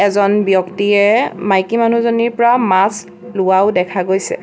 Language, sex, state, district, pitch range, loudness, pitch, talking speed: Assamese, female, Assam, Sonitpur, 190-230 Hz, -14 LUFS, 200 Hz, 120 wpm